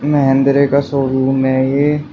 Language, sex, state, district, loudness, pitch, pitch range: Hindi, male, Uttar Pradesh, Shamli, -14 LUFS, 140 Hz, 135-145 Hz